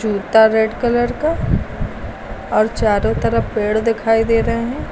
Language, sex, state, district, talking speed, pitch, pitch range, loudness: Hindi, female, Uttar Pradesh, Lucknow, 145 wpm, 220 Hz, 210-230 Hz, -17 LUFS